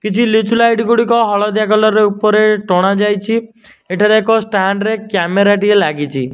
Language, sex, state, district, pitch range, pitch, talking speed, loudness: Odia, male, Odisha, Nuapada, 200-220 Hz, 215 Hz, 140 wpm, -13 LUFS